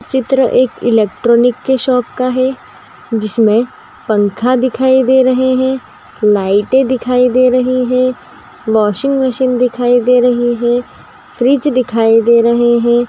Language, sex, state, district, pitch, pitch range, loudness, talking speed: Magahi, female, Bihar, Gaya, 250 Hz, 235-260 Hz, -12 LUFS, 140 wpm